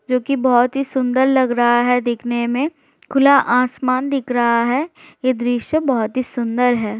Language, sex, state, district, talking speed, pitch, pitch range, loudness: Hindi, female, Bihar, Jahanabad, 180 wpm, 255 Hz, 240-270 Hz, -17 LUFS